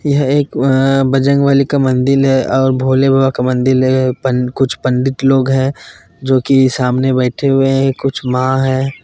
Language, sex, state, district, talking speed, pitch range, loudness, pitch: Hindi, male, Bihar, Katihar, 180 wpm, 130-135 Hz, -13 LUFS, 135 Hz